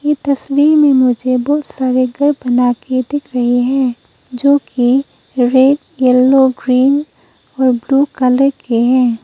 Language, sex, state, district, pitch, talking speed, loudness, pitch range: Hindi, female, Arunachal Pradesh, Papum Pare, 260 Hz, 145 wpm, -13 LUFS, 250-280 Hz